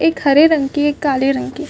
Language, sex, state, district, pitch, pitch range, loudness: Hindi, female, Chhattisgarh, Bastar, 285 Hz, 270-295 Hz, -15 LUFS